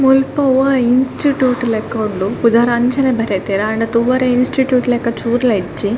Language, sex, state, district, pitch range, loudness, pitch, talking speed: Tulu, female, Karnataka, Dakshina Kannada, 225-255 Hz, -15 LUFS, 240 Hz, 140 wpm